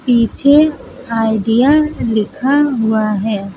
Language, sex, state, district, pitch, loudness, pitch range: Hindi, female, Uttar Pradesh, Lucknow, 230 Hz, -14 LUFS, 220-285 Hz